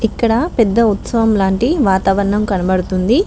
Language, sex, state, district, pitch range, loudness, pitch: Telugu, female, Telangana, Mahabubabad, 195-230 Hz, -15 LUFS, 215 Hz